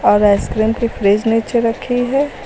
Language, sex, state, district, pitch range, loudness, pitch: Hindi, female, Uttar Pradesh, Lucknow, 215-245 Hz, -15 LUFS, 230 Hz